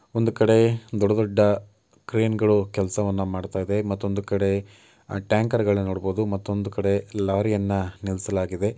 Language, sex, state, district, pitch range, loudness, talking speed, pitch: Kannada, male, Karnataka, Mysore, 100-110 Hz, -24 LUFS, 125 wpm, 100 Hz